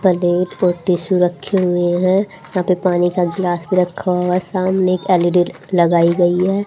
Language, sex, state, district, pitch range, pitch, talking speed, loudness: Hindi, female, Haryana, Rohtak, 175-185 Hz, 180 Hz, 190 wpm, -16 LUFS